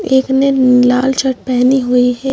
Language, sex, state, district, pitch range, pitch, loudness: Hindi, female, Madhya Pradesh, Bhopal, 250-265 Hz, 260 Hz, -12 LUFS